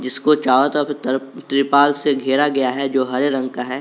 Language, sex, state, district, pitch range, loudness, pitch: Hindi, male, Jharkhand, Garhwa, 130-145 Hz, -18 LUFS, 135 Hz